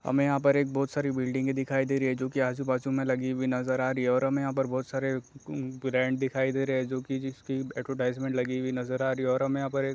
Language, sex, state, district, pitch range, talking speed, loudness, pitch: Hindi, male, Chhattisgarh, Bastar, 130-135 Hz, 275 wpm, -29 LUFS, 130 Hz